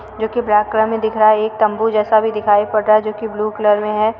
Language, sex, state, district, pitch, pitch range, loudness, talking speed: Hindi, female, Uttar Pradesh, Varanasi, 215 Hz, 215-220 Hz, -15 LUFS, 315 wpm